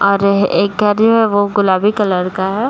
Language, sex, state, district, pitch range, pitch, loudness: Hindi, male, Bihar, Jahanabad, 195-210 Hz, 205 Hz, -13 LUFS